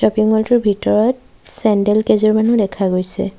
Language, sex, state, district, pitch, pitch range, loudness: Assamese, female, Assam, Sonitpur, 215 Hz, 205-220 Hz, -15 LUFS